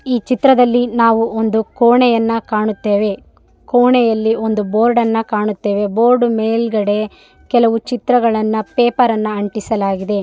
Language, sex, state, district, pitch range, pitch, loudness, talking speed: Kannada, female, Karnataka, Raichur, 215-240 Hz, 225 Hz, -15 LUFS, 95 wpm